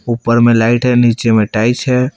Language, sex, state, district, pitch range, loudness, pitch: Hindi, male, Chhattisgarh, Raipur, 115-125 Hz, -12 LUFS, 120 Hz